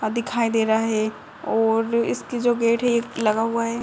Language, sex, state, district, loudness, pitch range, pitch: Hindi, female, Uttar Pradesh, Budaun, -22 LUFS, 220-235 Hz, 230 Hz